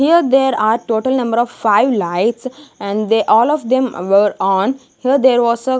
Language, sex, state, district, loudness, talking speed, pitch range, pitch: English, female, Punjab, Kapurthala, -15 LUFS, 195 wpm, 215-260 Hz, 235 Hz